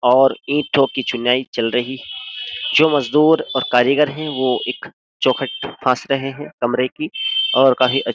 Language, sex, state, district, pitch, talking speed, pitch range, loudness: Hindi, male, Uttar Pradesh, Jyotiba Phule Nagar, 135 Hz, 160 wpm, 125-150 Hz, -18 LUFS